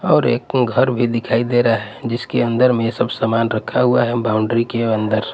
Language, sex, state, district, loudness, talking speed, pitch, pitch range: Hindi, male, Punjab, Pathankot, -17 LUFS, 235 wpm, 115 Hz, 110-120 Hz